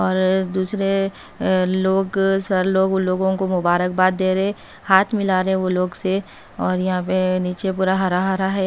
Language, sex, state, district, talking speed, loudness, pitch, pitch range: Hindi, female, Haryana, Charkhi Dadri, 175 wpm, -20 LUFS, 190 Hz, 185-190 Hz